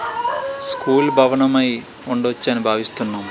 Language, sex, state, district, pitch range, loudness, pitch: Telugu, male, Andhra Pradesh, Srikakulam, 120-150 Hz, -18 LUFS, 130 Hz